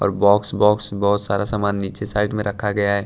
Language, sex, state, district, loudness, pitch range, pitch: Hindi, male, Chhattisgarh, Raipur, -20 LUFS, 100-105 Hz, 100 Hz